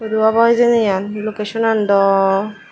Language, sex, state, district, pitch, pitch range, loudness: Chakma, female, Tripura, Dhalai, 215 Hz, 200-225 Hz, -15 LUFS